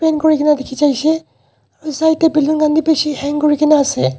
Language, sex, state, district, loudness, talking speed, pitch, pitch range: Nagamese, male, Nagaland, Dimapur, -14 LUFS, 185 wpm, 300 Hz, 295-315 Hz